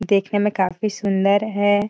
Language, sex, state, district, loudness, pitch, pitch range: Hindi, female, Bihar, Jahanabad, -20 LUFS, 205 Hz, 195-205 Hz